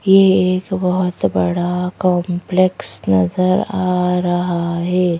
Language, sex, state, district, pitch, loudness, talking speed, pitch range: Hindi, female, Madhya Pradesh, Bhopal, 180 Hz, -17 LUFS, 105 wpm, 175-185 Hz